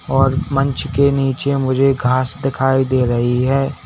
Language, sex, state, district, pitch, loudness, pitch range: Hindi, male, Uttar Pradesh, Saharanpur, 135 Hz, -16 LUFS, 130-135 Hz